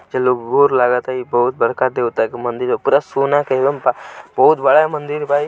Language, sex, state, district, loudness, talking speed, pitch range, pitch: Hindi, male, Bihar, Gopalganj, -16 LUFS, 185 wpm, 125-145 Hz, 130 Hz